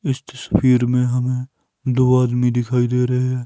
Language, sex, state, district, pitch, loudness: Hindi, male, Himachal Pradesh, Shimla, 125 Hz, -18 LUFS